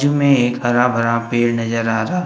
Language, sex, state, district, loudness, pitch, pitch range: Hindi, male, Maharashtra, Gondia, -17 LUFS, 120 Hz, 115-135 Hz